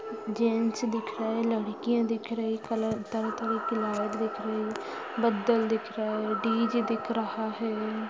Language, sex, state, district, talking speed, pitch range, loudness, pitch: Hindi, female, Uttar Pradesh, Deoria, 170 wpm, 220-225 Hz, -30 LUFS, 220 Hz